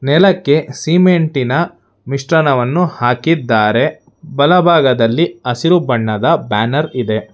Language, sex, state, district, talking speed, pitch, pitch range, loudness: Kannada, male, Karnataka, Bangalore, 75 wpm, 140 Hz, 120-165 Hz, -13 LUFS